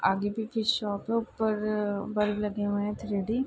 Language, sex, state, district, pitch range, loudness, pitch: Hindi, female, Bihar, Saharsa, 205-220 Hz, -29 LUFS, 210 Hz